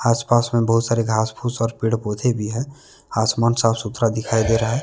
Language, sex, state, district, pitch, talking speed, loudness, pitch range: Hindi, male, Jharkhand, Deoghar, 115 Hz, 235 wpm, -20 LUFS, 110-120 Hz